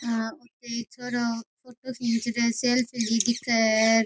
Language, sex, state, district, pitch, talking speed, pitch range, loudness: Rajasthani, female, Rajasthan, Nagaur, 235 Hz, 135 wpm, 230-245 Hz, -26 LUFS